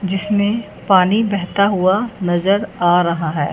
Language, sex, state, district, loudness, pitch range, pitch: Hindi, female, Punjab, Fazilka, -16 LUFS, 175-205 Hz, 195 Hz